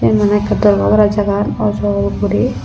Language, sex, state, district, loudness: Chakma, female, Tripura, Unakoti, -14 LUFS